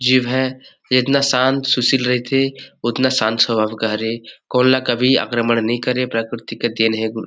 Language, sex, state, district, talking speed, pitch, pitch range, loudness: Chhattisgarhi, male, Chhattisgarh, Rajnandgaon, 190 wpm, 125 Hz, 115-130 Hz, -17 LUFS